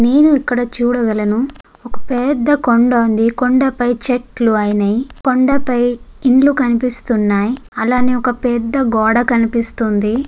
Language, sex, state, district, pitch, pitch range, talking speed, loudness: Telugu, female, Andhra Pradesh, Guntur, 245 Hz, 230-255 Hz, 115 wpm, -14 LUFS